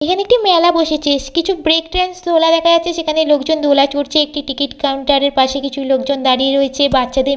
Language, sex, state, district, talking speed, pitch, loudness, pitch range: Bengali, female, West Bengal, Jhargram, 195 wpm, 290 Hz, -14 LUFS, 275-330 Hz